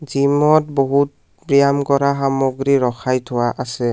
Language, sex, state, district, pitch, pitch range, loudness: Assamese, male, Assam, Kamrup Metropolitan, 140 Hz, 130-140 Hz, -17 LUFS